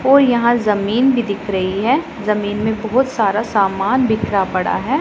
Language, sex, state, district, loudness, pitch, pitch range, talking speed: Hindi, female, Punjab, Pathankot, -16 LUFS, 220 Hz, 200-250 Hz, 180 wpm